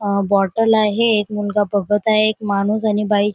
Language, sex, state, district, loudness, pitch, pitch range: Marathi, female, Maharashtra, Chandrapur, -17 LUFS, 210 Hz, 205-215 Hz